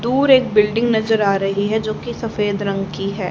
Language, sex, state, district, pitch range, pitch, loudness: Hindi, female, Haryana, Charkhi Dadri, 200-230 Hz, 215 Hz, -18 LUFS